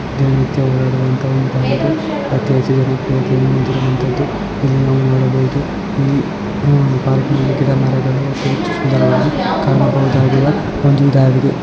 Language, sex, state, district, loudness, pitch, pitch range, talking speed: Kannada, male, Karnataka, Belgaum, -15 LUFS, 135 Hz, 130-135 Hz, 85 wpm